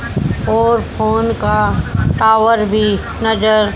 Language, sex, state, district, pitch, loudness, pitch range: Hindi, female, Haryana, Jhajjar, 215 Hz, -14 LUFS, 135-225 Hz